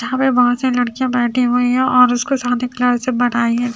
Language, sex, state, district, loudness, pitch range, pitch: Hindi, female, Haryana, Charkhi Dadri, -16 LUFS, 245-255 Hz, 245 Hz